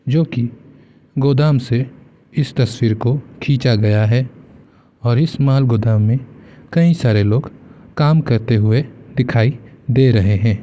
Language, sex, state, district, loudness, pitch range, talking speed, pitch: Hindi, male, Bihar, Samastipur, -16 LUFS, 115-135 Hz, 145 wpm, 125 Hz